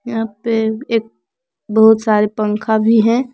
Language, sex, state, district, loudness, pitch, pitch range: Hindi, female, Jharkhand, Palamu, -15 LUFS, 220 Hz, 220-230 Hz